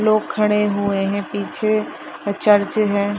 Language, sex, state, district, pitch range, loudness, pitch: Hindi, female, Bihar, Saharsa, 200-215 Hz, -19 LUFS, 205 Hz